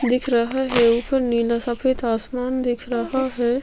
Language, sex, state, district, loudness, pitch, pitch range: Hindi, female, Chhattisgarh, Sukma, -21 LUFS, 245 Hz, 235-260 Hz